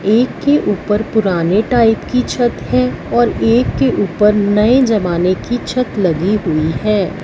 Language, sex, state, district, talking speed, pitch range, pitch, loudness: Hindi, female, Punjab, Fazilka, 160 wpm, 170-235 Hz, 210 Hz, -14 LUFS